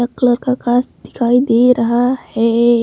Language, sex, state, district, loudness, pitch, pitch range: Hindi, female, Jharkhand, Palamu, -14 LUFS, 240 Hz, 235-250 Hz